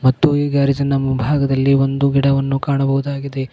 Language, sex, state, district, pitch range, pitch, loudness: Kannada, male, Karnataka, Koppal, 135-140 Hz, 140 Hz, -17 LUFS